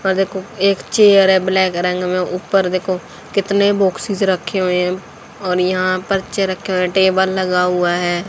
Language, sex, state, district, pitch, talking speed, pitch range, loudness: Hindi, female, Haryana, Charkhi Dadri, 190 Hz, 180 wpm, 180-195 Hz, -16 LUFS